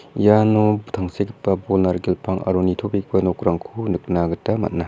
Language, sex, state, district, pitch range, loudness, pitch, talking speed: Garo, male, Meghalaya, West Garo Hills, 90-105 Hz, -20 LUFS, 95 Hz, 135 wpm